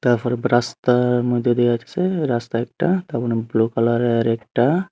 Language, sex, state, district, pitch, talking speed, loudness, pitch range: Bengali, male, Tripura, Unakoti, 120 Hz, 135 wpm, -20 LUFS, 115-125 Hz